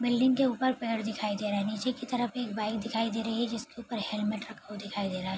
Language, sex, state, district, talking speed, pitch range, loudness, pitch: Hindi, female, Bihar, Araria, 290 wpm, 210-240 Hz, -31 LUFS, 225 Hz